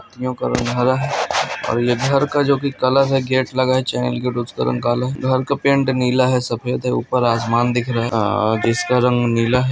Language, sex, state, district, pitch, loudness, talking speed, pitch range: Hindi, male, Bihar, Araria, 125 Hz, -18 LUFS, 205 wpm, 120-130 Hz